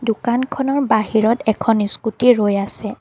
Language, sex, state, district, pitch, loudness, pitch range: Assamese, female, Assam, Kamrup Metropolitan, 225 Hz, -17 LUFS, 215-245 Hz